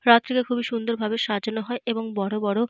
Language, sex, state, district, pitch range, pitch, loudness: Bengali, female, Jharkhand, Jamtara, 215-240 Hz, 230 Hz, -25 LUFS